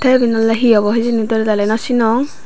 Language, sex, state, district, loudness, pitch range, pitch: Chakma, female, Tripura, Dhalai, -14 LUFS, 220-240 Hz, 225 Hz